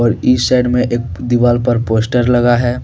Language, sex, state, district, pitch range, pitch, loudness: Hindi, male, Jharkhand, Deoghar, 120-125 Hz, 120 Hz, -13 LUFS